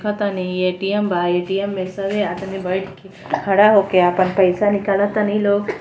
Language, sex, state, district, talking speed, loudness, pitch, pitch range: Bhojpuri, female, Uttar Pradesh, Gorakhpur, 145 wpm, -18 LUFS, 195 Hz, 185-205 Hz